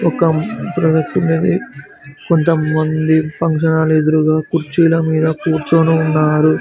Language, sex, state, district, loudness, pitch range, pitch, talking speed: Telugu, male, Telangana, Mahabubabad, -15 LUFS, 155-165 Hz, 160 Hz, 90 wpm